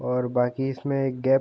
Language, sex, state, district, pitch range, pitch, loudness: Hindi, male, Uttar Pradesh, Jalaun, 125-135 Hz, 130 Hz, -25 LUFS